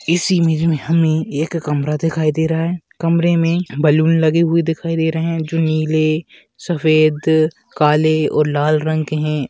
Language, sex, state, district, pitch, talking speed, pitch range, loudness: Hindi, male, Bihar, Darbhanga, 160 Hz, 175 wpm, 155-165 Hz, -16 LUFS